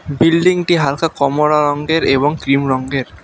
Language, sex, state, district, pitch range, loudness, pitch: Bengali, male, West Bengal, Alipurduar, 135-160 Hz, -15 LUFS, 145 Hz